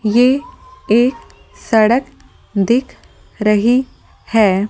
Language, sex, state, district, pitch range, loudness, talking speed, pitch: Hindi, female, Delhi, New Delhi, 215-260 Hz, -15 LUFS, 90 wpm, 235 Hz